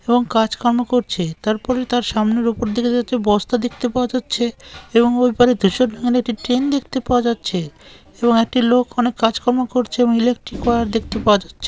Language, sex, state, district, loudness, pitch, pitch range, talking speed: Bengali, male, West Bengal, Malda, -18 LUFS, 240 Hz, 225-245 Hz, 165 wpm